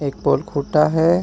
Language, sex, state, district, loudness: Hindi, male, Jharkhand, Ranchi, -18 LUFS